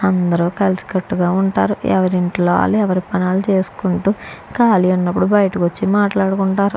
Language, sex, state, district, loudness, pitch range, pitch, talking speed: Telugu, female, Andhra Pradesh, Chittoor, -16 LUFS, 180-200 Hz, 190 Hz, 135 wpm